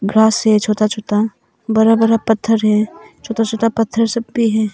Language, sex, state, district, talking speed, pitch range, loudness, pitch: Hindi, female, Arunachal Pradesh, Papum Pare, 175 wpm, 215-225 Hz, -15 LUFS, 220 Hz